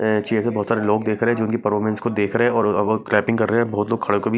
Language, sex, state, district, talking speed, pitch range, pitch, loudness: Hindi, male, Maharashtra, Mumbai Suburban, 315 wpm, 105-115 Hz, 110 Hz, -20 LUFS